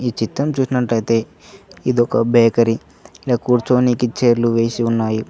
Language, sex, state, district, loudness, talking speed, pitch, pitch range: Telugu, male, Telangana, Mahabubabad, -17 LUFS, 125 wpm, 120 Hz, 115-125 Hz